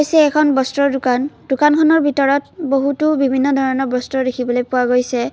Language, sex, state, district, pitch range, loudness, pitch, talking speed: Assamese, female, Assam, Kamrup Metropolitan, 255-295 Hz, -16 LUFS, 275 Hz, 145 wpm